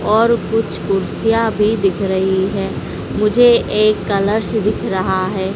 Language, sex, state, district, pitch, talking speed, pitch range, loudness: Hindi, female, Madhya Pradesh, Dhar, 205 Hz, 140 wpm, 190-220 Hz, -16 LUFS